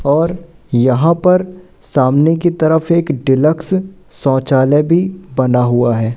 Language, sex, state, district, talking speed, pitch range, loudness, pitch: Hindi, male, Madhya Pradesh, Katni, 125 wpm, 130-170 Hz, -14 LUFS, 155 Hz